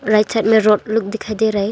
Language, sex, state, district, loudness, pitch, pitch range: Hindi, female, Arunachal Pradesh, Longding, -16 LUFS, 215 Hz, 210-220 Hz